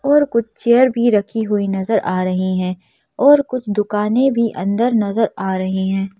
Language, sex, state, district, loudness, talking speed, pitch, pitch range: Hindi, female, Madhya Pradesh, Bhopal, -17 LUFS, 185 wpm, 210 Hz, 190-235 Hz